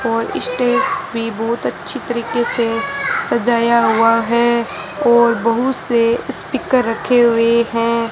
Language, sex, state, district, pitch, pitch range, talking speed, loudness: Hindi, male, Rajasthan, Bikaner, 235 Hz, 230-245 Hz, 125 wpm, -16 LUFS